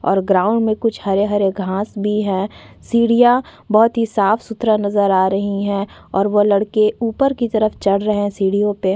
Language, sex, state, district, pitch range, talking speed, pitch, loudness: Hindi, female, Chhattisgarh, Korba, 200-225 Hz, 185 wpm, 210 Hz, -17 LUFS